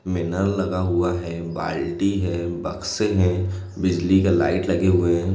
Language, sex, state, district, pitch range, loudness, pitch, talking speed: Hindi, male, Chhattisgarh, Raigarh, 85-95 Hz, -22 LUFS, 90 Hz, 155 wpm